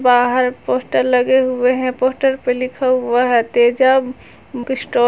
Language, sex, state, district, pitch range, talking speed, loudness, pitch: Hindi, female, Jharkhand, Garhwa, 245-260 Hz, 140 wpm, -16 LUFS, 255 Hz